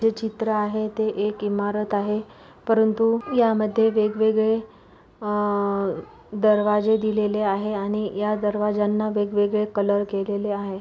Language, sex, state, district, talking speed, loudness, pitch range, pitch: Marathi, male, Maharashtra, Pune, 115 wpm, -23 LUFS, 205-220 Hz, 210 Hz